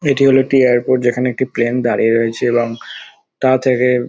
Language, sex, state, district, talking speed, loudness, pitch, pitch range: Bengali, male, West Bengal, Dakshin Dinajpur, 175 wpm, -15 LUFS, 125 Hz, 120-130 Hz